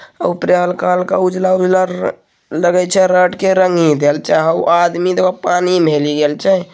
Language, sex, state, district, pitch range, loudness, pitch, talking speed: Hindi, male, Bihar, Begusarai, 170-185 Hz, -14 LUFS, 180 Hz, 185 wpm